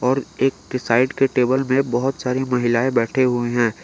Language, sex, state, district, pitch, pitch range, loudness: Hindi, male, Jharkhand, Garhwa, 130 Hz, 120-130 Hz, -19 LUFS